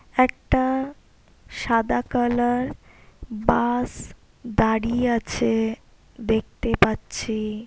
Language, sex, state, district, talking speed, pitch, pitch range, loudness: Bengali, female, West Bengal, Purulia, 65 wpm, 235 Hz, 220-245 Hz, -23 LUFS